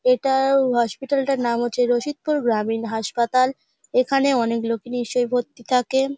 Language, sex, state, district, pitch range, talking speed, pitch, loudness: Bengali, female, West Bengal, Dakshin Dinajpur, 235-270 Hz, 145 wpm, 250 Hz, -21 LUFS